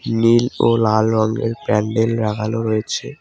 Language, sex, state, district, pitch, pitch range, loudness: Bengali, male, West Bengal, Cooch Behar, 110 Hz, 110-115 Hz, -18 LUFS